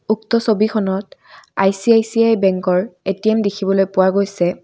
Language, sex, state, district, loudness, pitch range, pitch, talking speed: Assamese, female, Assam, Kamrup Metropolitan, -17 LUFS, 190-220 Hz, 195 Hz, 105 wpm